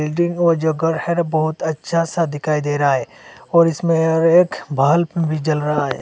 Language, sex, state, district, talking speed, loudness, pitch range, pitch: Hindi, male, Assam, Hailakandi, 220 wpm, -18 LUFS, 150-170 Hz, 160 Hz